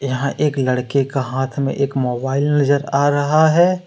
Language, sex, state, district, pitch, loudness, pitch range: Hindi, male, Jharkhand, Deoghar, 140 Hz, -18 LUFS, 135-145 Hz